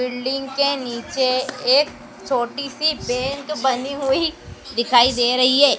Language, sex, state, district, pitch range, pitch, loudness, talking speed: Hindi, female, Madhya Pradesh, Dhar, 250-280 Hz, 265 Hz, -19 LUFS, 135 wpm